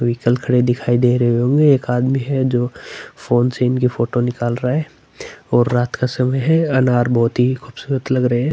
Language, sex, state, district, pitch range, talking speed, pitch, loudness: Hindi, male, Chhattisgarh, Sukma, 120-130 Hz, 205 wpm, 125 Hz, -17 LUFS